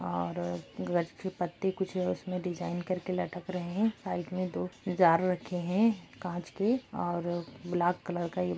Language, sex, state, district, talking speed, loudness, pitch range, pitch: Hindi, female, Uttar Pradesh, Jyotiba Phule Nagar, 180 wpm, -32 LUFS, 175-185 Hz, 180 Hz